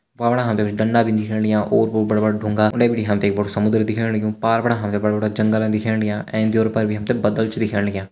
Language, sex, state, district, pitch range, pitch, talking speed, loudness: Hindi, male, Uttarakhand, Uttarkashi, 105-110 Hz, 110 Hz, 265 wpm, -19 LUFS